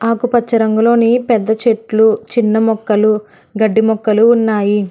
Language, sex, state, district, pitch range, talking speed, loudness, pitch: Telugu, female, Telangana, Hyderabad, 215-230 Hz, 110 wpm, -13 LUFS, 220 Hz